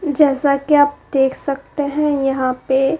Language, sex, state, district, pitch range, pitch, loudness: Hindi, female, Bihar, Kaimur, 270-290 Hz, 280 Hz, -17 LUFS